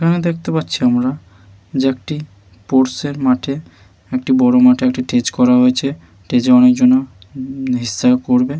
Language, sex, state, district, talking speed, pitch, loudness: Bengali, male, West Bengal, Malda, 145 wpm, 135 Hz, -15 LUFS